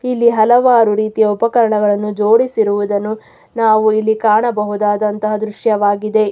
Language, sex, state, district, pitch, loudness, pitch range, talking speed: Kannada, female, Karnataka, Mysore, 215 Hz, -14 LUFS, 210-225 Hz, 85 wpm